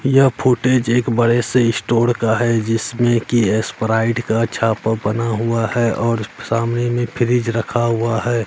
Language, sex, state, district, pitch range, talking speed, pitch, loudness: Hindi, male, Bihar, Katihar, 115-120 Hz, 165 wpm, 115 Hz, -17 LUFS